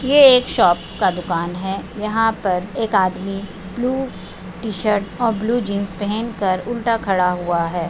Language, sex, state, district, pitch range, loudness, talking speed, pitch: Hindi, female, Bihar, Araria, 185-225 Hz, -19 LUFS, 150 wpm, 200 Hz